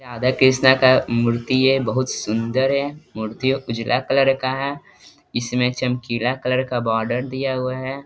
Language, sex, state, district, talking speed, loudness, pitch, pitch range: Hindi, male, Bihar, East Champaran, 165 wpm, -20 LUFS, 130 Hz, 120-130 Hz